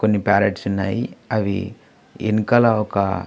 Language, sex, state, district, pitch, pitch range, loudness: Telugu, male, Andhra Pradesh, Visakhapatnam, 105 Hz, 100-110 Hz, -20 LUFS